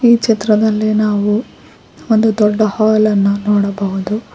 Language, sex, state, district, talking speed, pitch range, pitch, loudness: Kannada, female, Karnataka, Koppal, 95 wpm, 205-220 Hz, 215 Hz, -14 LUFS